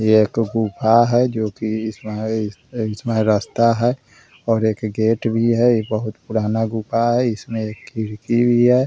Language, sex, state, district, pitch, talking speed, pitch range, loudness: Hindi, male, Bihar, Vaishali, 110 Hz, 185 wpm, 110-115 Hz, -19 LUFS